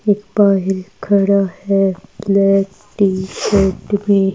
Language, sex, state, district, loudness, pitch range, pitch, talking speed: Hindi, female, Delhi, New Delhi, -16 LUFS, 195-200 Hz, 195 Hz, 110 wpm